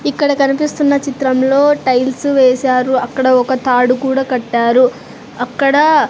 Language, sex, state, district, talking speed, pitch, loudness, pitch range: Telugu, female, Andhra Pradesh, Sri Satya Sai, 110 wpm, 260 Hz, -13 LUFS, 250-280 Hz